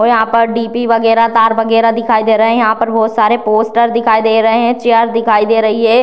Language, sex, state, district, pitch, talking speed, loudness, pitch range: Hindi, female, Bihar, Sitamarhi, 225 Hz, 250 wpm, -11 LUFS, 220-230 Hz